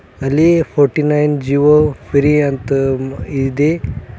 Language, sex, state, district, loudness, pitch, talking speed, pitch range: Kannada, male, Karnataka, Bidar, -14 LUFS, 145 Hz, 100 wpm, 135-150 Hz